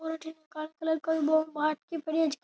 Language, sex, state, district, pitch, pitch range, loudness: Rajasthani, male, Rajasthan, Nagaur, 315 Hz, 310-320 Hz, -30 LUFS